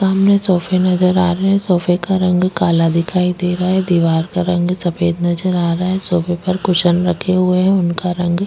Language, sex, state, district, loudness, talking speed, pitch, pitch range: Hindi, female, Chhattisgarh, Jashpur, -15 LUFS, 220 wpm, 180 Hz, 175-185 Hz